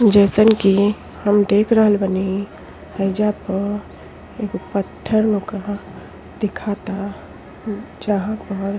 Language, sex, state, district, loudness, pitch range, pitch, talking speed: Bhojpuri, female, Uttar Pradesh, Ghazipur, -19 LUFS, 200-210 Hz, 205 Hz, 100 wpm